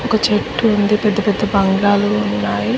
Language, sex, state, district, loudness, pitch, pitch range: Telugu, female, Telangana, Karimnagar, -16 LUFS, 205 Hz, 195-210 Hz